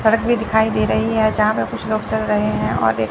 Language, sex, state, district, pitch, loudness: Hindi, female, Chandigarh, Chandigarh, 215 Hz, -18 LUFS